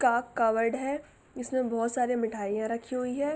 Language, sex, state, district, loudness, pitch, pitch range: Hindi, female, Uttar Pradesh, Jalaun, -30 LUFS, 245 Hz, 230-255 Hz